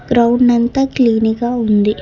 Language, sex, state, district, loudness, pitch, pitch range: Telugu, female, Telangana, Hyderabad, -14 LUFS, 235 Hz, 220-245 Hz